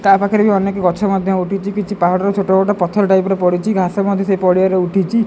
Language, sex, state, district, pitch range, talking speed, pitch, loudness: Odia, male, Odisha, Khordha, 185-200 Hz, 195 wpm, 195 Hz, -15 LUFS